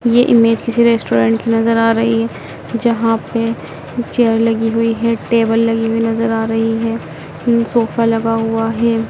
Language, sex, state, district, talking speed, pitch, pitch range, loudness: Hindi, female, Madhya Pradesh, Dhar, 170 wpm, 230 Hz, 225-230 Hz, -15 LUFS